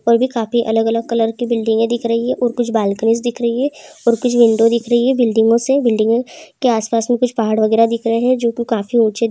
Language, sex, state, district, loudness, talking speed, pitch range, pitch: Hindi, female, West Bengal, North 24 Parganas, -16 LUFS, 250 wpm, 225-240 Hz, 235 Hz